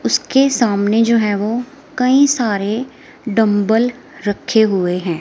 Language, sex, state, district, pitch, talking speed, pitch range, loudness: Hindi, female, Himachal Pradesh, Shimla, 225 Hz, 125 wpm, 205-250 Hz, -16 LUFS